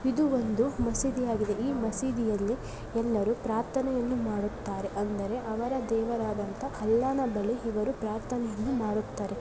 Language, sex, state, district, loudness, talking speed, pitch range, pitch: Kannada, female, Karnataka, Bellary, -30 LUFS, 95 wpm, 215-250 Hz, 230 Hz